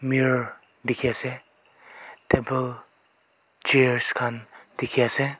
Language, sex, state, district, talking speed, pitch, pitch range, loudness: Nagamese, male, Nagaland, Kohima, 90 wpm, 130 Hz, 120-130 Hz, -24 LUFS